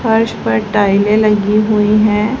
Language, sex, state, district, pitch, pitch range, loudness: Hindi, female, Haryana, Rohtak, 210 Hz, 205-215 Hz, -13 LUFS